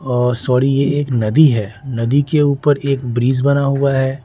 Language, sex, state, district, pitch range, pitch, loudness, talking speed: Hindi, male, Bihar, Patna, 125-140 Hz, 135 Hz, -15 LUFS, 200 wpm